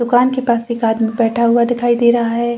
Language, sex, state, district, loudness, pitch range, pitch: Hindi, female, Chhattisgarh, Bastar, -15 LUFS, 235-240 Hz, 235 Hz